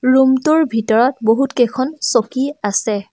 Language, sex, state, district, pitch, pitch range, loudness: Assamese, female, Assam, Sonitpur, 250 Hz, 225-270 Hz, -16 LUFS